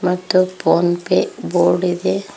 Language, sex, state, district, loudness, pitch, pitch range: Kannada, female, Karnataka, Koppal, -17 LUFS, 180 Hz, 180-185 Hz